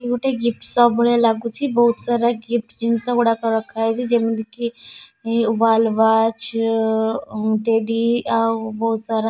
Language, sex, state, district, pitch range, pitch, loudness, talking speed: Odia, female, Odisha, Nuapada, 225-235 Hz, 230 Hz, -19 LUFS, 135 wpm